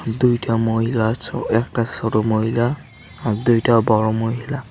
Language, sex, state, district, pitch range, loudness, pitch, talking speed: Bengali, male, West Bengal, Cooch Behar, 110-120 Hz, -19 LUFS, 115 Hz, 125 wpm